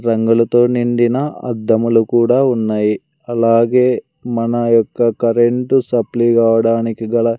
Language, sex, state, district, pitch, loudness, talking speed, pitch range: Telugu, male, Andhra Pradesh, Sri Satya Sai, 120 Hz, -15 LUFS, 95 wpm, 115-120 Hz